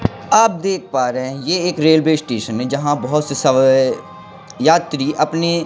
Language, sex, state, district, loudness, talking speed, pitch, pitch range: Hindi, male, Madhya Pradesh, Katni, -16 LUFS, 180 wpm, 150 Hz, 130-170 Hz